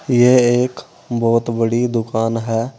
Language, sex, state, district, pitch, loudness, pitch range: Hindi, male, Uttar Pradesh, Saharanpur, 115 Hz, -17 LUFS, 115-125 Hz